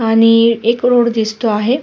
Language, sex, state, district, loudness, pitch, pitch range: Marathi, female, Maharashtra, Sindhudurg, -13 LUFS, 230 Hz, 225-240 Hz